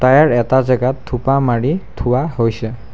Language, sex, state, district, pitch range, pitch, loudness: Assamese, male, Assam, Sonitpur, 120-135 Hz, 125 Hz, -16 LUFS